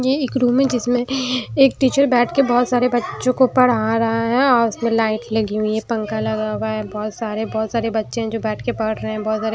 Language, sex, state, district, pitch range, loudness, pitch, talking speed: Hindi, female, Haryana, Jhajjar, 220-250 Hz, -19 LUFS, 230 Hz, 230 wpm